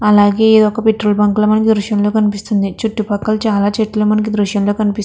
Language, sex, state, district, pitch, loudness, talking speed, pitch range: Telugu, female, Andhra Pradesh, Krishna, 210 Hz, -14 LUFS, 225 wpm, 205-215 Hz